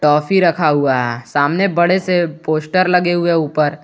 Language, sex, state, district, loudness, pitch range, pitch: Hindi, male, Jharkhand, Garhwa, -15 LUFS, 150-180 Hz, 165 Hz